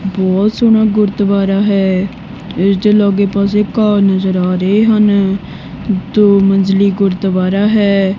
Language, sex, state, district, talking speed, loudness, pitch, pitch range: Punjabi, female, Punjab, Kapurthala, 115 wpm, -12 LUFS, 200 Hz, 195-210 Hz